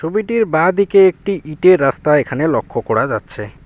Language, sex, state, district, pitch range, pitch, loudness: Bengali, male, West Bengal, Alipurduar, 150-195 Hz, 160 Hz, -15 LUFS